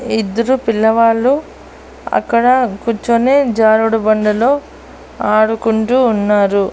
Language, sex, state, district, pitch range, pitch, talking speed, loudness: Telugu, female, Andhra Pradesh, Annamaya, 215-250 Hz, 225 Hz, 60 wpm, -13 LUFS